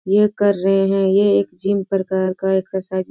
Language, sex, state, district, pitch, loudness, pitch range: Hindi, female, Bihar, Sitamarhi, 195 Hz, -18 LUFS, 190-200 Hz